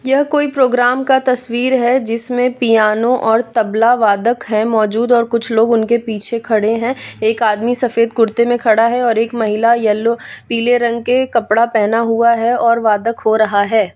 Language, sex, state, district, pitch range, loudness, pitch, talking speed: Hindi, female, Bihar, West Champaran, 220-245 Hz, -14 LUFS, 230 Hz, 185 wpm